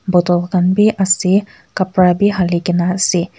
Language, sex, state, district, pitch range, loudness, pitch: Nagamese, female, Nagaland, Kohima, 175-190 Hz, -14 LUFS, 180 Hz